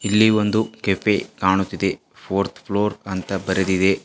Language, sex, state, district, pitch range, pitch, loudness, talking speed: Kannada, female, Karnataka, Bidar, 95-105 Hz, 100 Hz, -21 LUFS, 120 wpm